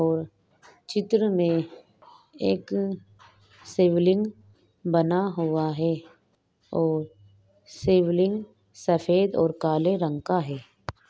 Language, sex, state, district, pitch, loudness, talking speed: Hindi, female, Rajasthan, Nagaur, 165 Hz, -25 LUFS, 85 wpm